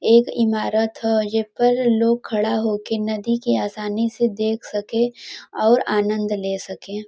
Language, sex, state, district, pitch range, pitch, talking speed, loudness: Bhojpuri, female, Uttar Pradesh, Varanasi, 210-230 Hz, 220 Hz, 150 wpm, -21 LUFS